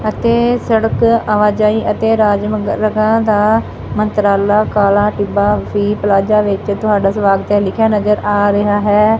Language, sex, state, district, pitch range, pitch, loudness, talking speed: Punjabi, female, Punjab, Fazilka, 205-215 Hz, 210 Hz, -13 LUFS, 135 wpm